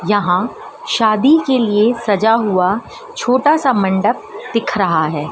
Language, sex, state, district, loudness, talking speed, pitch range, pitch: Hindi, female, Madhya Pradesh, Dhar, -15 LUFS, 135 wpm, 200-255 Hz, 220 Hz